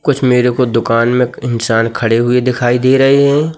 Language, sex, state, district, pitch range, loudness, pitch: Hindi, male, Madhya Pradesh, Katni, 115-135 Hz, -12 LUFS, 125 Hz